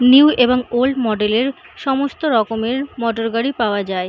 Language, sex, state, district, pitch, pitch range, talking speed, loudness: Bengali, female, West Bengal, Purulia, 245 Hz, 225-270 Hz, 145 wpm, -17 LUFS